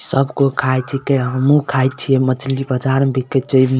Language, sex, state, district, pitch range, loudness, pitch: Maithili, male, Bihar, Supaul, 130-135 Hz, -16 LUFS, 135 Hz